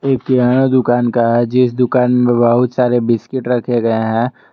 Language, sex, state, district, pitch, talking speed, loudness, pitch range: Hindi, male, Jharkhand, Garhwa, 125 Hz, 185 wpm, -14 LUFS, 120-125 Hz